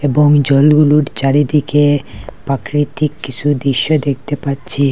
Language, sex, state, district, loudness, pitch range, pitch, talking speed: Bengali, male, Assam, Hailakandi, -14 LUFS, 140-150 Hz, 145 Hz, 100 wpm